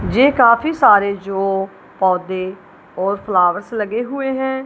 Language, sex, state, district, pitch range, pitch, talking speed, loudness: Hindi, female, Punjab, Kapurthala, 195-255 Hz, 200 Hz, 130 wpm, -16 LUFS